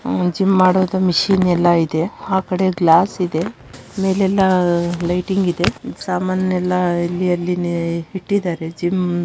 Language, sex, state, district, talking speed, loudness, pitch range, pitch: Kannada, female, Karnataka, Shimoga, 115 wpm, -18 LUFS, 175-185 Hz, 180 Hz